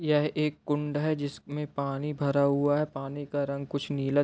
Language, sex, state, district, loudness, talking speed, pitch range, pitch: Hindi, male, Uttar Pradesh, Gorakhpur, -29 LUFS, 210 wpm, 140-150 Hz, 145 Hz